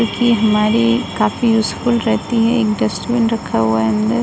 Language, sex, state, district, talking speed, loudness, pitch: Hindi, female, Uttar Pradesh, Budaun, 140 wpm, -16 LUFS, 220 Hz